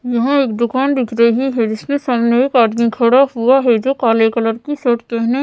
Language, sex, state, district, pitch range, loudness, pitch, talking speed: Hindi, female, Odisha, Sambalpur, 230-265 Hz, -14 LUFS, 240 Hz, 200 wpm